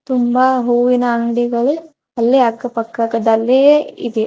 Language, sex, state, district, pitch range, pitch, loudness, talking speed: Kannada, female, Karnataka, Raichur, 235-260 Hz, 240 Hz, -15 LUFS, 100 wpm